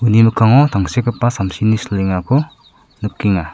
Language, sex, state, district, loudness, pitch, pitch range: Garo, male, Meghalaya, South Garo Hills, -15 LUFS, 110 Hz, 100-120 Hz